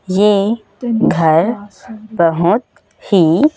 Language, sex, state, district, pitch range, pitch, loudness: Hindi, female, Chhattisgarh, Raipur, 175-225 Hz, 205 Hz, -14 LUFS